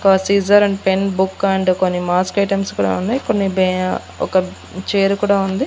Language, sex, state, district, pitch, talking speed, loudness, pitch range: Telugu, female, Andhra Pradesh, Annamaya, 195 Hz, 180 wpm, -17 LUFS, 185-200 Hz